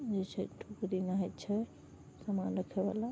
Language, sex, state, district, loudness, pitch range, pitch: Maithili, female, Bihar, Vaishali, -38 LUFS, 190-215 Hz, 200 Hz